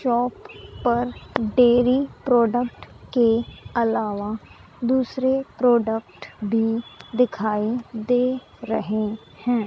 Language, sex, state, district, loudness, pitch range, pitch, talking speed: Hindi, female, Haryana, Rohtak, -23 LUFS, 220-250 Hz, 235 Hz, 80 wpm